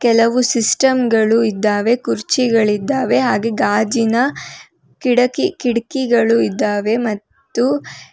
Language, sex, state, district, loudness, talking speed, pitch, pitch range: Kannada, female, Karnataka, Bangalore, -16 LUFS, 80 wpm, 230 Hz, 210-245 Hz